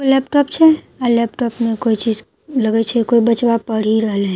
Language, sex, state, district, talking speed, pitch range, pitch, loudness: Maithili, female, Bihar, Katihar, 205 wpm, 220-260 Hz, 235 Hz, -16 LUFS